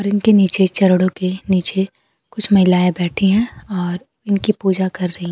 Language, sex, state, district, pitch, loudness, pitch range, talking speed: Hindi, female, Bihar, Kaimur, 190 Hz, -16 LUFS, 180-200 Hz, 170 wpm